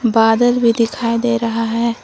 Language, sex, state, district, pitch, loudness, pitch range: Hindi, female, Jharkhand, Palamu, 230 Hz, -15 LUFS, 230-235 Hz